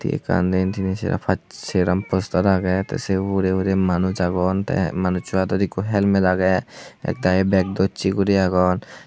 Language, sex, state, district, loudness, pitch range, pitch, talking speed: Chakma, male, Tripura, Unakoti, -21 LUFS, 90-95 Hz, 95 Hz, 165 wpm